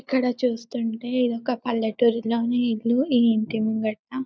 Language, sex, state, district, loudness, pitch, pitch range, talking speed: Telugu, female, Telangana, Karimnagar, -23 LUFS, 235 Hz, 225-250 Hz, 140 wpm